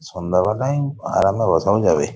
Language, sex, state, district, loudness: Bengali, male, West Bengal, Paschim Medinipur, -19 LUFS